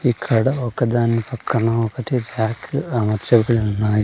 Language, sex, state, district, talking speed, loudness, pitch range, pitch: Telugu, male, Andhra Pradesh, Sri Satya Sai, 105 wpm, -20 LUFS, 110-125 Hz, 115 Hz